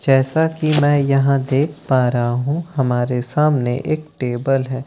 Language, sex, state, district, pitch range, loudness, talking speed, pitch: Hindi, male, Bihar, Katihar, 125-150 Hz, -18 LUFS, 160 wpm, 135 Hz